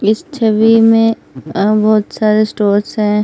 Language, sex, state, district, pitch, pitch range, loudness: Hindi, female, Delhi, New Delhi, 215 Hz, 210-225 Hz, -12 LUFS